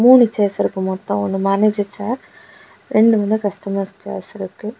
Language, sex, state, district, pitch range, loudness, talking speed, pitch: Tamil, female, Tamil Nadu, Kanyakumari, 195-220 Hz, -18 LUFS, 150 wpm, 205 Hz